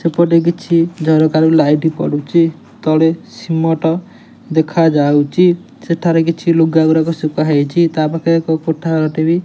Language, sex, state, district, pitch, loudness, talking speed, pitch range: Odia, male, Odisha, Nuapada, 160 Hz, -14 LUFS, 125 wpm, 155-170 Hz